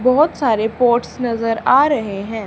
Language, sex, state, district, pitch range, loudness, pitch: Hindi, female, Haryana, Charkhi Dadri, 220-255 Hz, -16 LUFS, 235 Hz